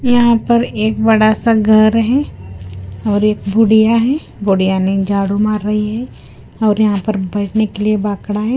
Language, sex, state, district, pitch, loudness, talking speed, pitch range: Hindi, female, Punjab, Kapurthala, 215 Hz, -14 LUFS, 175 wpm, 200-225 Hz